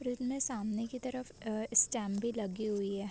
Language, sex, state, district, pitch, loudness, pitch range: Hindi, female, Chhattisgarh, Bilaspur, 230 Hz, -35 LUFS, 210-250 Hz